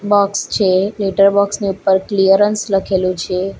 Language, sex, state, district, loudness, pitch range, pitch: Gujarati, female, Gujarat, Valsad, -15 LUFS, 190-200 Hz, 195 Hz